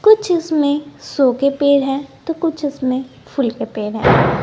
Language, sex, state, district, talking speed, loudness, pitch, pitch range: Hindi, female, Bihar, West Champaran, 190 wpm, -17 LUFS, 285 Hz, 265-315 Hz